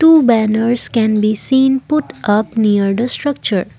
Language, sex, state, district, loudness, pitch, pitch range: English, female, Assam, Kamrup Metropolitan, -14 LUFS, 225 Hz, 215-265 Hz